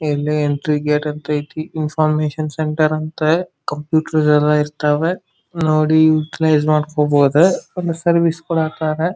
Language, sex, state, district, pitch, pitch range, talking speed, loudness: Kannada, male, Karnataka, Dharwad, 155 Hz, 150-160 Hz, 130 wpm, -17 LUFS